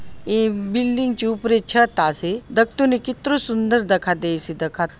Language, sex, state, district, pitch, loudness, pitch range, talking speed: Halbi, female, Chhattisgarh, Bastar, 225 Hz, -20 LUFS, 180-240 Hz, 165 wpm